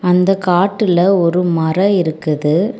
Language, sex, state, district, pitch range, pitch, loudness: Tamil, female, Tamil Nadu, Kanyakumari, 165-195 Hz, 180 Hz, -14 LUFS